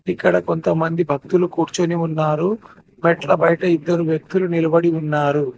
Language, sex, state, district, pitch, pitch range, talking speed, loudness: Telugu, male, Telangana, Hyderabad, 165 Hz, 155-175 Hz, 120 wpm, -19 LUFS